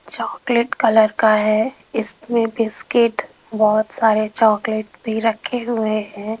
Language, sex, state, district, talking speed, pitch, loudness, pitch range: Hindi, female, Rajasthan, Jaipur, 120 wpm, 220 Hz, -18 LUFS, 215-230 Hz